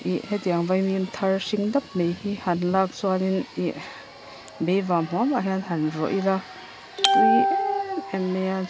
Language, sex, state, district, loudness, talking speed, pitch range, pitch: Mizo, female, Mizoram, Aizawl, -24 LUFS, 160 wpm, 185-210 Hz, 190 Hz